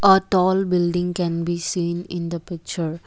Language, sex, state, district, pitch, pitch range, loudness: English, female, Assam, Kamrup Metropolitan, 175 Hz, 170-185 Hz, -22 LUFS